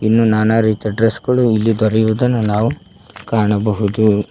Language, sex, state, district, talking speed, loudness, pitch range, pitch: Kannada, male, Karnataka, Koppal, 140 wpm, -15 LUFS, 105-115 Hz, 110 Hz